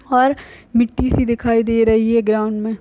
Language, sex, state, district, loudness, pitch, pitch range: Hindi, female, Chhattisgarh, Sarguja, -17 LUFS, 230 Hz, 220-235 Hz